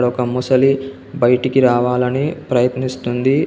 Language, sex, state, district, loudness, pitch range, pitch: Telugu, male, Telangana, Komaram Bheem, -16 LUFS, 125-135 Hz, 130 Hz